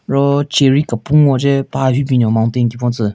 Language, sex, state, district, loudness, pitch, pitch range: Rengma, male, Nagaland, Kohima, -14 LUFS, 135 Hz, 120-140 Hz